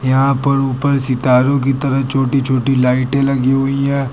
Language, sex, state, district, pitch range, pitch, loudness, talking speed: Hindi, male, Uttar Pradesh, Lucknow, 130-140 Hz, 135 Hz, -15 LUFS, 175 wpm